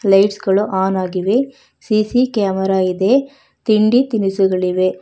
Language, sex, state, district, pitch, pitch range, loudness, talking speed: Kannada, female, Karnataka, Bangalore, 200 Hz, 190-235 Hz, -16 LUFS, 110 wpm